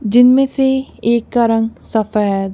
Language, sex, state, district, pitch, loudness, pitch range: Hindi, female, Punjab, Kapurthala, 230 Hz, -15 LUFS, 215-255 Hz